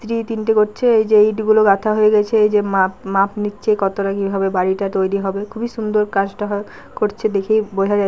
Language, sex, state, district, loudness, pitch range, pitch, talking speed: Bengali, female, West Bengal, Paschim Medinipur, -17 LUFS, 195-215 Hz, 210 Hz, 185 wpm